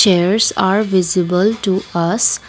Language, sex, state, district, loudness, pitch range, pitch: English, female, Assam, Kamrup Metropolitan, -15 LUFS, 180-210 Hz, 190 Hz